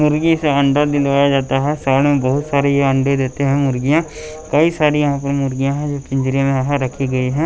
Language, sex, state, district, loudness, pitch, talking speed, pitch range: Hindi, male, Bihar, West Champaran, -16 LUFS, 140 Hz, 225 wpm, 135-150 Hz